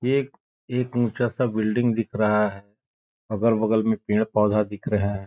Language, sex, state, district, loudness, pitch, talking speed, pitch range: Hindi, male, Chhattisgarh, Balrampur, -23 LUFS, 110 Hz, 170 wpm, 105-120 Hz